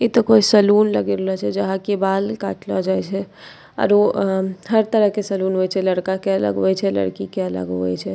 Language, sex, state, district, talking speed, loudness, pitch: Angika, female, Bihar, Bhagalpur, 220 wpm, -19 LUFS, 190 Hz